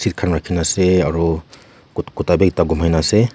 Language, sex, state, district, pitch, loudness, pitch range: Nagamese, male, Nagaland, Kohima, 85 Hz, -17 LUFS, 80-95 Hz